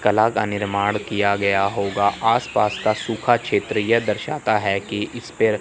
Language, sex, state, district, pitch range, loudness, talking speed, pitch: Hindi, male, Chandigarh, Chandigarh, 100-110 Hz, -21 LUFS, 170 wpm, 105 Hz